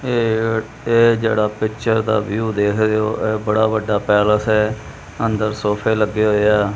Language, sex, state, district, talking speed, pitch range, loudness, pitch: Punjabi, male, Punjab, Kapurthala, 160 wpm, 105-110 Hz, -18 LUFS, 110 Hz